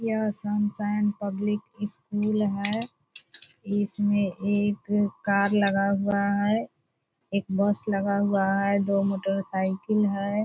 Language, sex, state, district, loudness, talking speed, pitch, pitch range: Hindi, female, Bihar, Purnia, -25 LUFS, 120 wpm, 205 Hz, 200-210 Hz